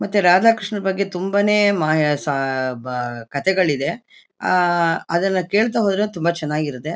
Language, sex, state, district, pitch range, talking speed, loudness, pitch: Kannada, female, Karnataka, Mysore, 145-200 Hz, 140 wpm, -19 LUFS, 175 Hz